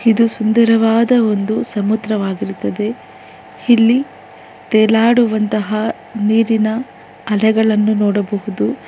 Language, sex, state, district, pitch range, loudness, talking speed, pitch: Kannada, female, Karnataka, Bangalore, 210-230 Hz, -15 LUFS, 60 wpm, 220 Hz